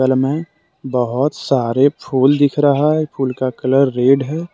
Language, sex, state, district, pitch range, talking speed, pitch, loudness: Hindi, male, Jharkhand, Deoghar, 130-145 Hz, 170 wpm, 135 Hz, -16 LUFS